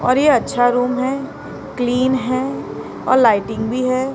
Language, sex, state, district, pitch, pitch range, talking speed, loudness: Hindi, female, Maharashtra, Mumbai Suburban, 255 Hz, 245-260 Hz, 160 wpm, -17 LUFS